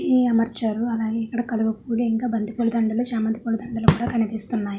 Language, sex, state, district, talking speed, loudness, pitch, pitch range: Telugu, female, Andhra Pradesh, Visakhapatnam, 175 wpm, -23 LUFS, 230 Hz, 220-235 Hz